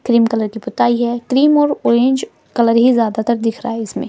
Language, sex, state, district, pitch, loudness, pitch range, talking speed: Hindi, female, Delhi, New Delhi, 235 Hz, -15 LUFS, 230-250 Hz, 235 wpm